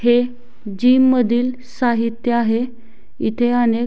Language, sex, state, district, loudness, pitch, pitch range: Marathi, female, Maharashtra, Sindhudurg, -18 LUFS, 240 Hz, 235-245 Hz